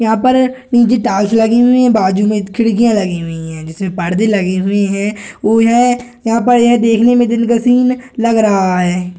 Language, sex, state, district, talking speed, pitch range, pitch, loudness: Hindi, male, Bihar, Gaya, 200 wpm, 195-240 Hz, 225 Hz, -12 LUFS